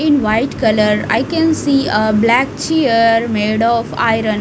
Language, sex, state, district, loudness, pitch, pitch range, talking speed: English, female, Punjab, Fazilka, -14 LUFS, 230 Hz, 215-275 Hz, 175 wpm